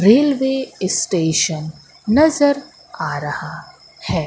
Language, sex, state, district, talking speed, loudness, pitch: Hindi, female, Madhya Pradesh, Katni, 85 wpm, -18 LUFS, 220 Hz